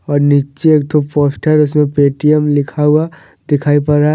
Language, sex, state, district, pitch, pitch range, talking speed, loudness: Hindi, male, Jharkhand, Deoghar, 150 Hz, 145-150 Hz, 160 wpm, -13 LUFS